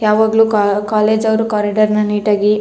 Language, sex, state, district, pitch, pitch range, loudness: Kannada, female, Karnataka, Chamarajanagar, 210 Hz, 210-220 Hz, -14 LUFS